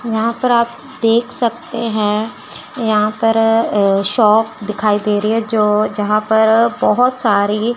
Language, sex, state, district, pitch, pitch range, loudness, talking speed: Hindi, female, Chandigarh, Chandigarh, 220 Hz, 210-235 Hz, -15 LUFS, 160 wpm